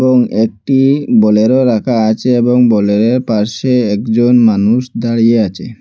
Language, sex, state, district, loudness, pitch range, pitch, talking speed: Bengali, male, Assam, Hailakandi, -11 LUFS, 110-125 Hz, 115 Hz, 125 wpm